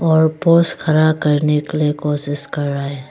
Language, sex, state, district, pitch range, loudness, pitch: Hindi, female, Arunachal Pradesh, Longding, 145-155 Hz, -16 LUFS, 150 Hz